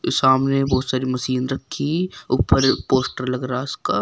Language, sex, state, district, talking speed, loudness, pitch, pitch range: Hindi, female, Uttar Pradesh, Shamli, 165 wpm, -21 LUFS, 130 Hz, 130-135 Hz